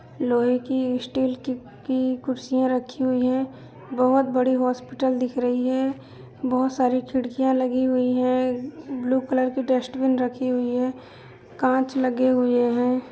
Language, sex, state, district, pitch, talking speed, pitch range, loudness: Hindi, female, Uttar Pradesh, Budaun, 255 Hz, 145 wpm, 250-260 Hz, -23 LUFS